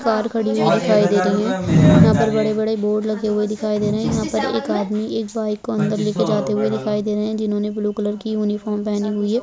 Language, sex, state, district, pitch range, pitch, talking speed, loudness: Hindi, female, Andhra Pradesh, Krishna, 210-215 Hz, 210 Hz, 250 wpm, -19 LUFS